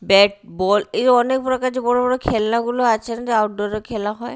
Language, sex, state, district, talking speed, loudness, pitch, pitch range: Bengali, female, Odisha, Nuapada, 205 wpm, -19 LUFS, 230 Hz, 210-245 Hz